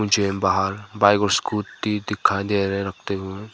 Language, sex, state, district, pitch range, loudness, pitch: Hindi, male, Nagaland, Kohima, 100-105 Hz, -22 LUFS, 100 Hz